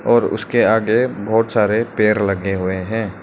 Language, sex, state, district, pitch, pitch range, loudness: Hindi, male, Arunachal Pradesh, Lower Dibang Valley, 105 Hz, 95-110 Hz, -17 LUFS